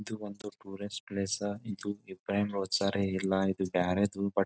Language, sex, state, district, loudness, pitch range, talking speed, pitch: Kannada, male, Karnataka, Bijapur, -33 LUFS, 95-100 Hz, 160 wpm, 100 Hz